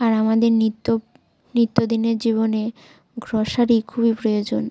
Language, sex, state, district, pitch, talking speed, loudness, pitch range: Bengali, female, West Bengal, Jalpaiguri, 225 Hz, 100 wpm, -20 LUFS, 220-230 Hz